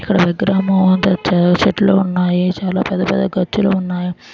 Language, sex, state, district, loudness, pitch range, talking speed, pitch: Telugu, female, Andhra Pradesh, Srikakulam, -15 LUFS, 180-195 Hz, 150 wpm, 185 Hz